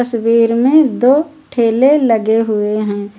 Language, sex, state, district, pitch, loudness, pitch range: Hindi, female, Uttar Pradesh, Lucknow, 230 Hz, -13 LUFS, 220-265 Hz